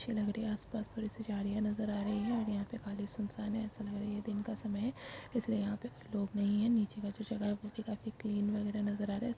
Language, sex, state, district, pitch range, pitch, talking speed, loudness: Hindi, female, Maharashtra, Aurangabad, 205-220 Hz, 210 Hz, 275 wpm, -38 LUFS